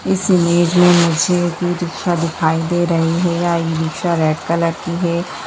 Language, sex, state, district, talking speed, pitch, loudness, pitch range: Hindi, female, Bihar, Lakhisarai, 165 wpm, 170 Hz, -16 LUFS, 165-175 Hz